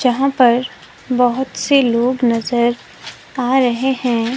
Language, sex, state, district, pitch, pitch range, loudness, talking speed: Hindi, female, Himachal Pradesh, Shimla, 250 Hz, 240-260 Hz, -16 LUFS, 125 wpm